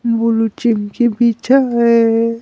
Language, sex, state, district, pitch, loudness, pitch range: Hindi, male, Bihar, Patna, 230 Hz, -14 LUFS, 230-235 Hz